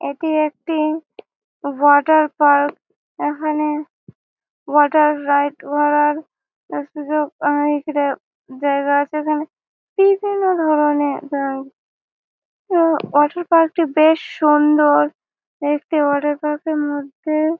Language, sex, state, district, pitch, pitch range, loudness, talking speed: Bengali, female, West Bengal, Malda, 300 Hz, 290-315 Hz, -17 LUFS, 100 wpm